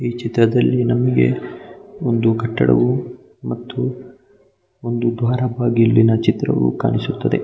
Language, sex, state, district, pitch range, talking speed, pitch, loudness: Kannada, male, Karnataka, Mysore, 115-125 Hz, 95 wpm, 120 Hz, -18 LUFS